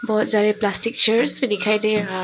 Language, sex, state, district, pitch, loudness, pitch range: Hindi, female, Arunachal Pradesh, Papum Pare, 215 Hz, -17 LUFS, 210-230 Hz